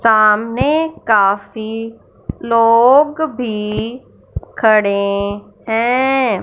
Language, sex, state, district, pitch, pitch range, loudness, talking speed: Hindi, female, Punjab, Fazilka, 225 Hz, 210-255 Hz, -15 LUFS, 55 wpm